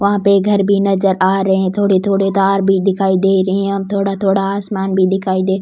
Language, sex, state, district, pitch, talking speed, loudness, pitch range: Rajasthani, female, Rajasthan, Churu, 195 Hz, 245 wpm, -14 LUFS, 190-195 Hz